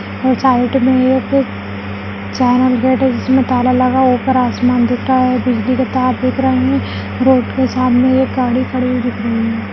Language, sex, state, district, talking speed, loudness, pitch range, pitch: Hindi, female, Bihar, Madhepura, 190 wpm, -14 LUFS, 245-260 Hz, 255 Hz